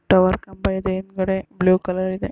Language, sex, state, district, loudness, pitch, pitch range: Kannada, female, Karnataka, Bijapur, -21 LUFS, 185 Hz, 185-190 Hz